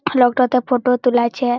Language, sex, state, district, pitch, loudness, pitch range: Bengali, female, West Bengal, Malda, 250 Hz, -16 LUFS, 245-255 Hz